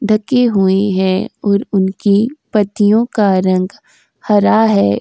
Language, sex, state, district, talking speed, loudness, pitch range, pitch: Hindi, female, Uttar Pradesh, Jyotiba Phule Nagar, 120 wpm, -13 LUFS, 190-220 Hz, 205 Hz